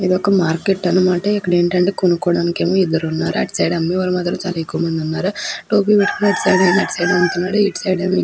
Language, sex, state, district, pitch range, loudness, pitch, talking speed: Telugu, female, Andhra Pradesh, Krishna, 170-190 Hz, -17 LUFS, 180 Hz, 205 wpm